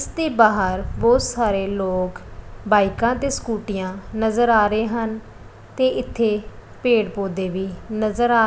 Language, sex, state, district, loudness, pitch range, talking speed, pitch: Punjabi, female, Punjab, Pathankot, -21 LUFS, 190-230 Hz, 140 wpm, 215 Hz